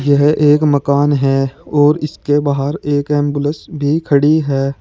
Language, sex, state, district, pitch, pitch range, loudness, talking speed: Hindi, male, Uttar Pradesh, Saharanpur, 145 Hz, 140-150 Hz, -14 LUFS, 150 wpm